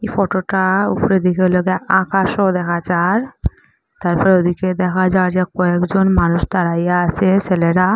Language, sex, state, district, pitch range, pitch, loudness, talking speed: Bengali, female, Assam, Hailakandi, 180-190 Hz, 185 Hz, -16 LUFS, 145 wpm